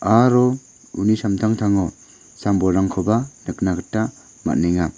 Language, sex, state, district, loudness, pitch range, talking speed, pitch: Garo, male, Meghalaya, West Garo Hills, -20 LUFS, 95-110 Hz, 85 wpm, 105 Hz